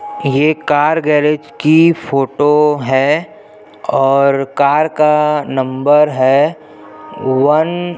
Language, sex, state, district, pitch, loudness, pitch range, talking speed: Hindi, male, Chhattisgarh, Jashpur, 150 Hz, -13 LUFS, 135-155 Hz, 100 wpm